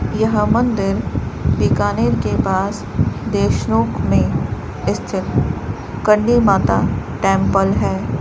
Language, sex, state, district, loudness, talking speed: Hindi, male, Rajasthan, Bikaner, -17 LUFS, 90 wpm